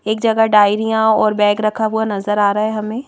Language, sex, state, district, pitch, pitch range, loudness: Hindi, female, Madhya Pradesh, Bhopal, 215 Hz, 210-220 Hz, -15 LUFS